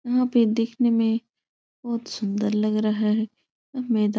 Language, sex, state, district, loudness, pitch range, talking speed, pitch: Hindi, female, Uttar Pradesh, Etah, -24 LUFS, 215-240 Hz, 170 wpm, 225 Hz